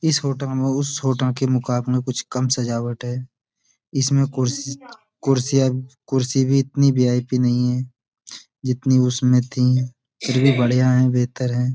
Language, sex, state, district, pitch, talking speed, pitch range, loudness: Hindi, male, Uttar Pradesh, Budaun, 130 Hz, 150 wpm, 125-135 Hz, -20 LUFS